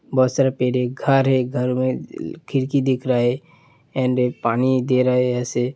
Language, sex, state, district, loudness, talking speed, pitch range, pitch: Hindi, male, Uttar Pradesh, Hamirpur, -20 LUFS, 220 wpm, 125-135 Hz, 130 Hz